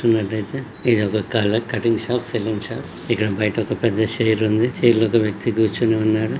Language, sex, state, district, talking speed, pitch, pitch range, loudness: Telugu, male, Andhra Pradesh, Srikakulam, 180 wpm, 110 Hz, 110-115 Hz, -20 LUFS